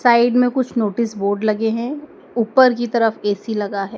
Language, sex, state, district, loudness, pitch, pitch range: Hindi, female, Madhya Pradesh, Dhar, -18 LUFS, 230 Hz, 215-245 Hz